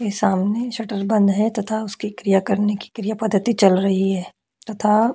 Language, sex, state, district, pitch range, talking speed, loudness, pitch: Hindi, female, Chhattisgarh, Korba, 200-220 Hz, 185 wpm, -20 LUFS, 210 Hz